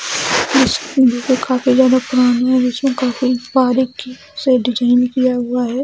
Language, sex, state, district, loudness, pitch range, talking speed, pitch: Hindi, female, Chhattisgarh, Balrampur, -15 LUFS, 245-260 Hz, 155 wpm, 255 Hz